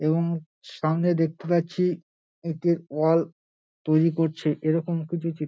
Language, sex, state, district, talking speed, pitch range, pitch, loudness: Bengali, male, West Bengal, Dakshin Dinajpur, 130 wpm, 155-170 Hz, 165 Hz, -25 LUFS